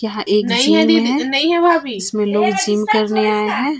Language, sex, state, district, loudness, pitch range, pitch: Hindi, female, Chhattisgarh, Raipur, -15 LUFS, 210-270 Hz, 215 Hz